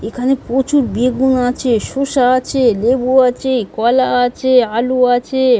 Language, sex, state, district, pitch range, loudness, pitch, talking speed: Bengali, female, West Bengal, Dakshin Dinajpur, 245-260 Hz, -14 LUFS, 250 Hz, 130 wpm